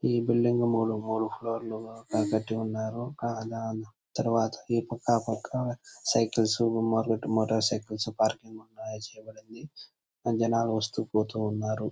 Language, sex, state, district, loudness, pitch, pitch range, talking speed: Telugu, male, Andhra Pradesh, Chittoor, -29 LUFS, 110 Hz, 110-115 Hz, 130 wpm